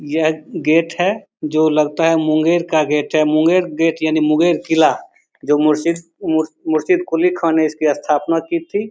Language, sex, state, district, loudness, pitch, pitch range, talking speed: Hindi, male, Bihar, Begusarai, -16 LUFS, 160 Hz, 155-170 Hz, 170 wpm